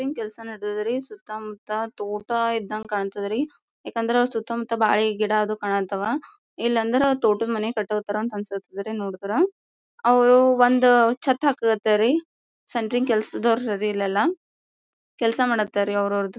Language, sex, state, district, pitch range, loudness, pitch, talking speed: Kannada, female, Karnataka, Gulbarga, 210-245 Hz, -23 LUFS, 225 Hz, 130 wpm